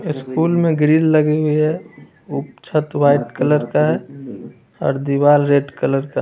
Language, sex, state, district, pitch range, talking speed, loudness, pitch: Hindi, male, Bihar, Muzaffarpur, 140-155 Hz, 175 wpm, -17 LUFS, 145 Hz